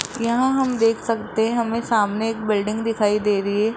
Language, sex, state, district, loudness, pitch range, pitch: Hindi, female, Rajasthan, Jaipur, -21 LUFS, 210-230 Hz, 225 Hz